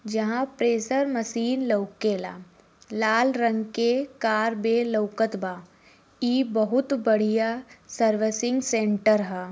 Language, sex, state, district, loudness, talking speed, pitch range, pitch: Bhojpuri, female, Bihar, Gopalganj, -24 LUFS, 105 wpm, 215-240 Hz, 225 Hz